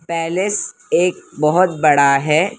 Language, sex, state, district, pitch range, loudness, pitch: Hindi, female, Maharashtra, Mumbai Suburban, 150-185 Hz, -16 LUFS, 165 Hz